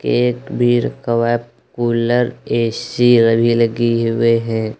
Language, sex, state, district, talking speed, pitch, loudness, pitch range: Hindi, male, Uttar Pradesh, Lucknow, 100 wpm, 115 Hz, -16 LUFS, 115-120 Hz